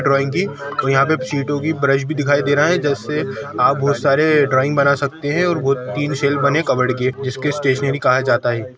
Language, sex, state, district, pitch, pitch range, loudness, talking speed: Hindi, male, Chhattisgarh, Sukma, 140 Hz, 135-145 Hz, -17 LUFS, 225 wpm